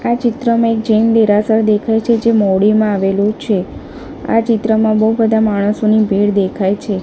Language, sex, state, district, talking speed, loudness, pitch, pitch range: Gujarati, female, Gujarat, Gandhinagar, 170 wpm, -13 LUFS, 215 Hz, 205-225 Hz